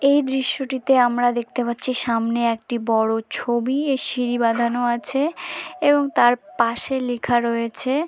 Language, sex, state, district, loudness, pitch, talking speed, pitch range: Bengali, female, West Bengal, Dakshin Dinajpur, -21 LUFS, 245 Hz, 140 wpm, 235-270 Hz